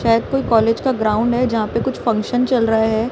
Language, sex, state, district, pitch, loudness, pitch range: Hindi, female, Chhattisgarh, Raipur, 230 Hz, -17 LUFS, 220-245 Hz